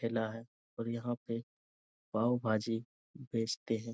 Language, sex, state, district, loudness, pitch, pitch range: Hindi, male, Bihar, Jahanabad, -37 LUFS, 115 Hz, 110-120 Hz